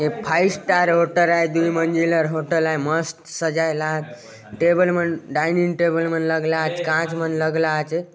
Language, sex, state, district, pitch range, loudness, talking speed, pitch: Halbi, male, Chhattisgarh, Bastar, 155-170 Hz, -20 LUFS, 160 wpm, 165 Hz